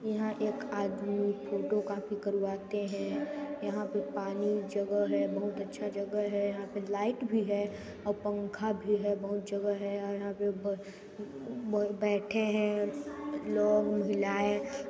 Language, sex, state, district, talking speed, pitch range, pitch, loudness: Hindi, male, Chhattisgarh, Sarguja, 135 wpm, 200-210 Hz, 205 Hz, -33 LUFS